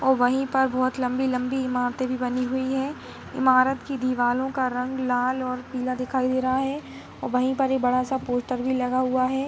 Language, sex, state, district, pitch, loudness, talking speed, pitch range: Kumaoni, female, Uttarakhand, Tehri Garhwal, 255 Hz, -24 LUFS, 210 wpm, 250-265 Hz